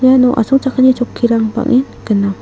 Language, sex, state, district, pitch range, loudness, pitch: Garo, female, Meghalaya, South Garo Hills, 230-260 Hz, -13 LUFS, 250 Hz